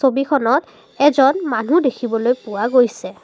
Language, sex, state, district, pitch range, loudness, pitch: Assamese, female, Assam, Kamrup Metropolitan, 240-280 Hz, -17 LUFS, 265 Hz